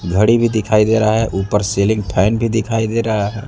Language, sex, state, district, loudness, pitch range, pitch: Hindi, male, Bihar, West Champaran, -16 LUFS, 105-115 Hz, 110 Hz